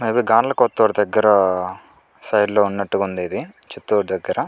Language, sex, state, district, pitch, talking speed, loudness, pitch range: Telugu, male, Andhra Pradesh, Chittoor, 105 Hz, 135 wpm, -18 LUFS, 95-110 Hz